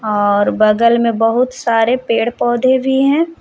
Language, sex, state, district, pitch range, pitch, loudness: Hindi, female, Jharkhand, Palamu, 225-255 Hz, 235 Hz, -14 LUFS